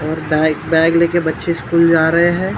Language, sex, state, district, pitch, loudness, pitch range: Hindi, male, Maharashtra, Gondia, 165 Hz, -14 LUFS, 160-170 Hz